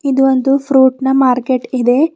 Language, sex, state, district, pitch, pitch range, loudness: Kannada, female, Karnataka, Bidar, 265 Hz, 255-270 Hz, -13 LUFS